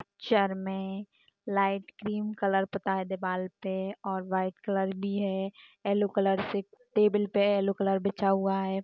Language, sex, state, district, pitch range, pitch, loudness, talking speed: Hindi, female, Uttarakhand, Tehri Garhwal, 190-200 Hz, 195 Hz, -30 LUFS, 170 wpm